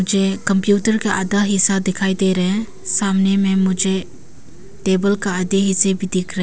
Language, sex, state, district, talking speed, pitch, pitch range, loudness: Hindi, female, Arunachal Pradesh, Papum Pare, 175 wpm, 195 Hz, 190-200 Hz, -17 LUFS